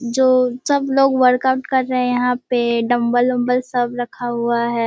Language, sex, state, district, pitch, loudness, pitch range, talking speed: Hindi, female, Bihar, Muzaffarpur, 250 Hz, -17 LUFS, 240-260 Hz, 170 wpm